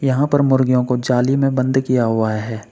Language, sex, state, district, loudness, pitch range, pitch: Hindi, male, Uttar Pradesh, Saharanpur, -17 LUFS, 120-135 Hz, 130 Hz